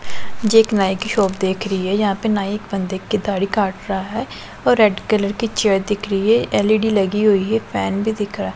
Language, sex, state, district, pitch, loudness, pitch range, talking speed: Hindi, female, Punjab, Pathankot, 205 Hz, -18 LUFS, 195-215 Hz, 230 wpm